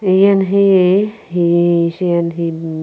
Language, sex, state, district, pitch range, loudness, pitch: Chakma, female, Tripura, Unakoti, 170-195 Hz, -14 LUFS, 175 Hz